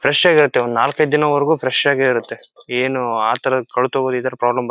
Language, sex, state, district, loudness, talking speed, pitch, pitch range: Kannada, male, Karnataka, Shimoga, -17 LUFS, 240 wpm, 130 Hz, 125-135 Hz